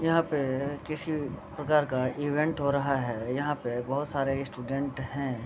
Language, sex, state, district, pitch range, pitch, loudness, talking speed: Hindi, male, Bihar, Vaishali, 130-150 Hz, 140 Hz, -30 LUFS, 165 wpm